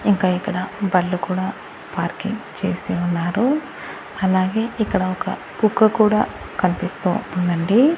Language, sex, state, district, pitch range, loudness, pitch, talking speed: Telugu, female, Andhra Pradesh, Annamaya, 180-215 Hz, -21 LUFS, 190 Hz, 105 wpm